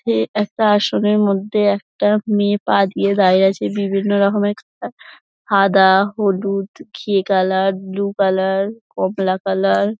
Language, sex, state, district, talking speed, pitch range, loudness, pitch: Bengali, female, West Bengal, Dakshin Dinajpur, 125 wpm, 190-205 Hz, -17 LUFS, 195 Hz